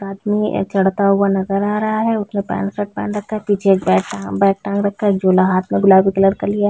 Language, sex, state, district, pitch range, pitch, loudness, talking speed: Hindi, female, Chhattisgarh, Bilaspur, 195-205 Hz, 200 Hz, -16 LUFS, 260 wpm